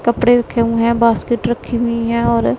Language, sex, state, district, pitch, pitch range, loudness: Hindi, female, Punjab, Pathankot, 235 Hz, 230-235 Hz, -15 LUFS